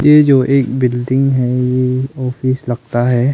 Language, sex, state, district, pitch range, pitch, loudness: Hindi, male, Arunachal Pradesh, Longding, 125-135 Hz, 130 Hz, -14 LUFS